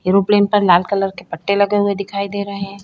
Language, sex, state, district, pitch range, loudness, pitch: Hindi, female, Uttar Pradesh, Budaun, 195-200 Hz, -17 LUFS, 200 Hz